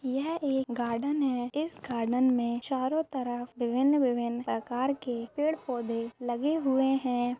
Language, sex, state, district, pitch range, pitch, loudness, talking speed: Hindi, female, Maharashtra, Aurangabad, 240-275 Hz, 255 Hz, -30 LUFS, 145 wpm